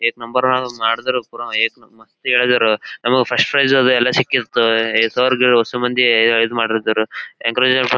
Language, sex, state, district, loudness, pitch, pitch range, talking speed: Kannada, male, Karnataka, Gulbarga, -16 LUFS, 125 Hz, 115-130 Hz, 150 wpm